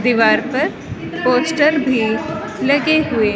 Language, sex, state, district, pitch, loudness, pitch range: Hindi, female, Haryana, Jhajjar, 255 Hz, -16 LUFS, 230-300 Hz